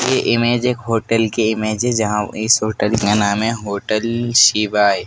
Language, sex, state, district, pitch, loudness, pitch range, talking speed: Hindi, male, Madhya Pradesh, Dhar, 110 Hz, -16 LUFS, 105-120 Hz, 180 wpm